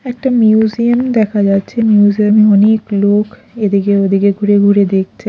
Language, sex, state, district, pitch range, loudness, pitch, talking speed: Bengali, female, Odisha, Khordha, 200-220 Hz, -11 LUFS, 210 Hz, 135 wpm